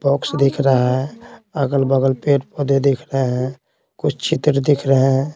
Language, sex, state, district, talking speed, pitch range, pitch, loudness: Hindi, male, Bihar, Patna, 170 wpm, 135-145 Hz, 140 Hz, -18 LUFS